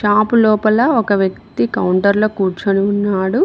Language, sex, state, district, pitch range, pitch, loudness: Telugu, female, Telangana, Mahabubabad, 195-215 Hz, 205 Hz, -15 LUFS